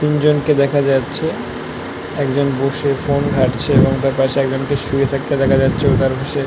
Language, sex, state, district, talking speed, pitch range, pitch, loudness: Bengali, male, West Bengal, North 24 Parganas, 195 wpm, 135-140 Hz, 140 Hz, -16 LUFS